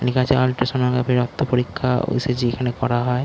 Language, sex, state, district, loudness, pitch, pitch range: Bengali, male, West Bengal, Dakshin Dinajpur, -20 LUFS, 125 Hz, 125-130 Hz